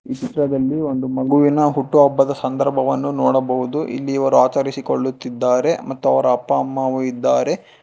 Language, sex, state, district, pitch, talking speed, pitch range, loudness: Kannada, male, Karnataka, Bangalore, 135 Hz, 125 wpm, 130-140 Hz, -18 LUFS